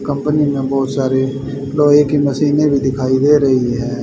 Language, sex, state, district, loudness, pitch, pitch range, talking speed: Hindi, male, Haryana, Rohtak, -15 LUFS, 135 Hz, 130-145 Hz, 180 wpm